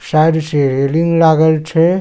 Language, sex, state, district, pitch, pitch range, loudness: Maithili, male, Bihar, Supaul, 160 Hz, 155-165 Hz, -13 LUFS